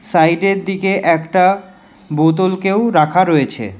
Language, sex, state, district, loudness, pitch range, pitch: Bengali, male, West Bengal, Alipurduar, -14 LUFS, 160-195 Hz, 185 Hz